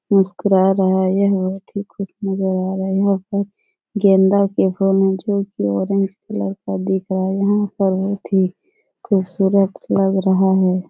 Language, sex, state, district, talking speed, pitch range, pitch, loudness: Hindi, female, Bihar, Supaul, 130 wpm, 190-200 Hz, 195 Hz, -18 LUFS